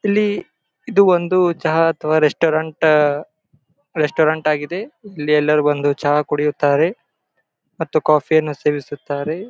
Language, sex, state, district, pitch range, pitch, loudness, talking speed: Kannada, male, Karnataka, Gulbarga, 150-165 Hz, 155 Hz, -17 LUFS, 115 wpm